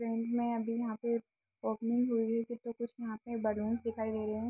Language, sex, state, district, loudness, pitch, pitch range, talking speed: Hindi, female, Jharkhand, Sahebganj, -36 LUFS, 230 Hz, 220-235 Hz, 240 wpm